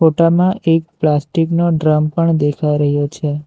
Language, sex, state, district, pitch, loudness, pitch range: Gujarati, male, Gujarat, Valsad, 155 Hz, -15 LUFS, 150-165 Hz